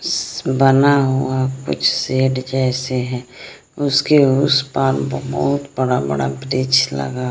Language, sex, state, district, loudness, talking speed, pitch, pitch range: Hindi, female, Bihar, Kaimur, -17 LUFS, 115 wpm, 130 Hz, 100-135 Hz